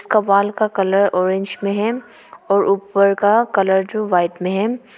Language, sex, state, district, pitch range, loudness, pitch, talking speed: Hindi, female, Arunachal Pradesh, Papum Pare, 195-215 Hz, -17 LUFS, 200 Hz, 170 wpm